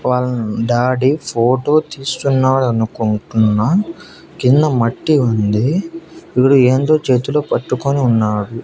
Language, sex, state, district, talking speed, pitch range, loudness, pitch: Telugu, male, Andhra Pradesh, Annamaya, 85 wpm, 115-145 Hz, -15 LUFS, 130 Hz